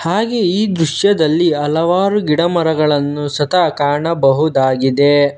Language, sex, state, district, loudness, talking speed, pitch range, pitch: Kannada, male, Karnataka, Bangalore, -14 LUFS, 80 wpm, 145-175 Hz, 155 Hz